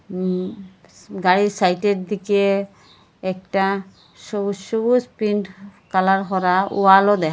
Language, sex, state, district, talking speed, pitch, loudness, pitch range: Bengali, female, Assam, Hailakandi, 115 wpm, 195 Hz, -19 LUFS, 185-205 Hz